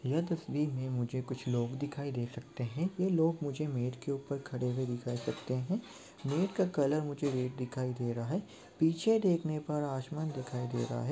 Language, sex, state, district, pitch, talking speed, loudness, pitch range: Hindi, male, Chhattisgarh, Sarguja, 140 Hz, 205 wpm, -35 LUFS, 125-155 Hz